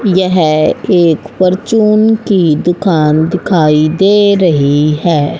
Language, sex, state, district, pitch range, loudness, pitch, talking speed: Hindi, female, Haryana, Rohtak, 155-195 Hz, -10 LUFS, 175 Hz, 100 wpm